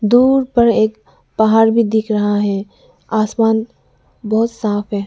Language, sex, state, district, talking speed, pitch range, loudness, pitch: Hindi, female, Arunachal Pradesh, Lower Dibang Valley, 140 wpm, 210-230 Hz, -15 LUFS, 220 Hz